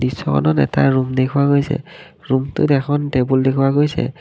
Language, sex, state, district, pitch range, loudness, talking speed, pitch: Assamese, male, Assam, Kamrup Metropolitan, 130-145 Hz, -17 LUFS, 140 wpm, 135 Hz